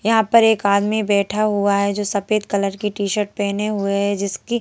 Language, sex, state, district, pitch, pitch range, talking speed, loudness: Hindi, female, Madhya Pradesh, Bhopal, 205 Hz, 200-215 Hz, 220 wpm, -19 LUFS